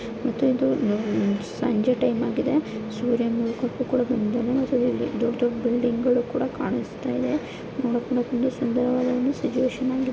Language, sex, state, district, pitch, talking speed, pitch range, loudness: Kannada, female, Karnataka, Bijapur, 245 Hz, 70 wpm, 235-255 Hz, -24 LUFS